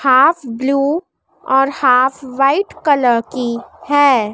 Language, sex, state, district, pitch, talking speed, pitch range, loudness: Hindi, female, Madhya Pradesh, Dhar, 265 Hz, 110 wpm, 245-280 Hz, -15 LUFS